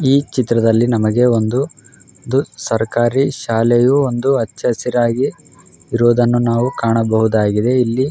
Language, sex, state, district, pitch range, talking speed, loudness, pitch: Kannada, male, Karnataka, Raichur, 115-130 Hz, 95 wpm, -15 LUFS, 120 Hz